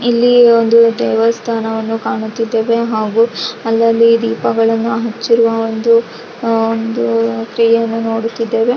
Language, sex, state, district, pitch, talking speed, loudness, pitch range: Kannada, female, Karnataka, Raichur, 230 Hz, 95 wpm, -13 LUFS, 225-230 Hz